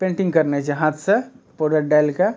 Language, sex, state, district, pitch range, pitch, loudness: Maithili, male, Bihar, Supaul, 150-190 Hz, 155 Hz, -19 LUFS